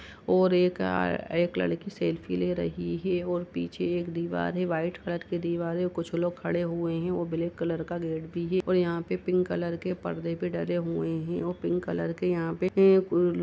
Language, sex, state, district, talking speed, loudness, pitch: Hindi, female, Uttar Pradesh, Budaun, 215 wpm, -29 LUFS, 170 Hz